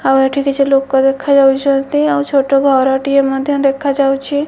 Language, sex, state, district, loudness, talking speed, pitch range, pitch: Odia, female, Odisha, Malkangiri, -13 LUFS, 135 wpm, 270-280 Hz, 275 Hz